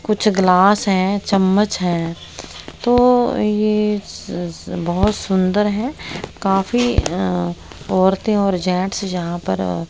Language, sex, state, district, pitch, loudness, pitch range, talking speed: Hindi, female, Haryana, Rohtak, 195 Hz, -18 LUFS, 175-210 Hz, 115 wpm